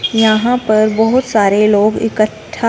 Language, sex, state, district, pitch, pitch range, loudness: Hindi, female, Punjab, Fazilka, 215 Hz, 215-225 Hz, -13 LUFS